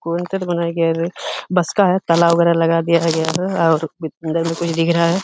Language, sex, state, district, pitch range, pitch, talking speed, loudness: Hindi, male, Uttar Pradesh, Hamirpur, 165-175 Hz, 170 Hz, 230 wpm, -17 LUFS